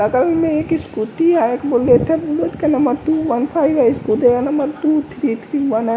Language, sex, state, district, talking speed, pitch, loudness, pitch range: Hindi, male, Bihar, West Champaran, 180 wpm, 285 Hz, -16 LUFS, 245-315 Hz